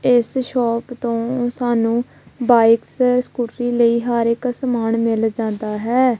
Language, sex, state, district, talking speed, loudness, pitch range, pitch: Punjabi, female, Punjab, Kapurthala, 125 wpm, -18 LUFS, 230-250 Hz, 240 Hz